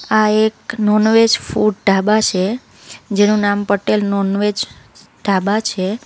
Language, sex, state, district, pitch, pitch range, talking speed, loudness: Gujarati, female, Gujarat, Valsad, 210 Hz, 200-215 Hz, 140 wpm, -16 LUFS